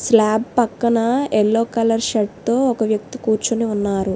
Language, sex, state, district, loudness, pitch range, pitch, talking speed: Telugu, female, Telangana, Hyderabad, -18 LUFS, 215-235 Hz, 225 Hz, 130 wpm